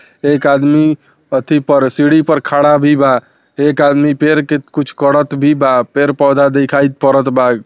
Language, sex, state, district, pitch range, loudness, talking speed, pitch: Bhojpuri, male, Bihar, Saran, 140-150 Hz, -11 LUFS, 165 wpm, 145 Hz